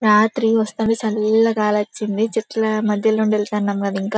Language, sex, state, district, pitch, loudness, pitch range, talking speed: Telugu, female, Telangana, Karimnagar, 215 Hz, -19 LUFS, 210-225 Hz, 115 wpm